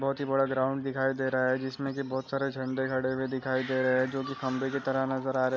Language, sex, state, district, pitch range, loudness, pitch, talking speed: Hindi, male, Andhra Pradesh, Chittoor, 130-135 Hz, -30 LUFS, 130 Hz, 300 wpm